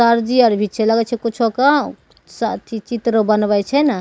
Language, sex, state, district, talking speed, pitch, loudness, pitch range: Maithili, female, Bihar, Begusarai, 210 wpm, 230 Hz, -17 LUFS, 220-240 Hz